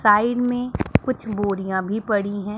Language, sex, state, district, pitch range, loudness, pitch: Hindi, female, Punjab, Pathankot, 200-235 Hz, -22 LUFS, 210 Hz